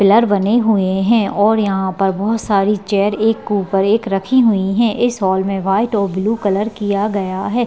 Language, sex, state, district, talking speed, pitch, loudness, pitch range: Hindi, female, Bihar, Madhepura, 210 wpm, 205 Hz, -16 LUFS, 195-220 Hz